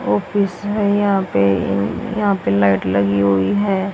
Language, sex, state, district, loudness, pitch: Hindi, female, Haryana, Rohtak, -17 LUFS, 175 Hz